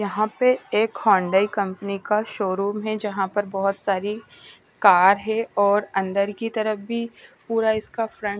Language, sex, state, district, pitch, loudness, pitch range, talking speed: Hindi, female, Punjab, Pathankot, 210 Hz, -22 LUFS, 200-220 Hz, 165 wpm